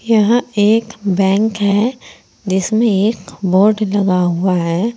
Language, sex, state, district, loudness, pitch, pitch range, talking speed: Hindi, female, Uttar Pradesh, Saharanpur, -15 LUFS, 205 Hz, 190-220 Hz, 120 wpm